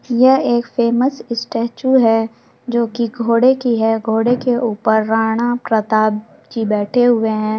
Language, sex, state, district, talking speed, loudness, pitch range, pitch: Hindi, female, Chhattisgarh, Sukma, 160 wpm, -16 LUFS, 220-245 Hz, 235 Hz